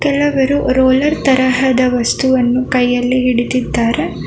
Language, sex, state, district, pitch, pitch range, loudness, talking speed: Kannada, female, Karnataka, Bangalore, 260 Hz, 250-270 Hz, -13 LUFS, 85 wpm